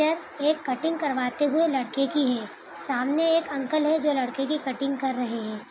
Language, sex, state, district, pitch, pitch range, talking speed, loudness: Hindi, female, Bihar, Saran, 275 Hz, 255-305 Hz, 200 wpm, -26 LUFS